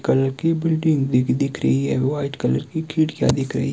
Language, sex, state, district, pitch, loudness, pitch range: Hindi, male, Himachal Pradesh, Shimla, 140 Hz, -21 LUFS, 125-155 Hz